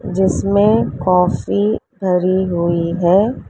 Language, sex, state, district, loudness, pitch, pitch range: Hindi, female, Uttar Pradesh, Lalitpur, -16 LUFS, 185 Hz, 175-200 Hz